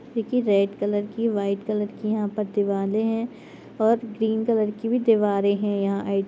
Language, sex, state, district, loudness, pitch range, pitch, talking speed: Hindi, female, Jharkhand, Jamtara, -24 LUFS, 200-225 Hz, 210 Hz, 190 wpm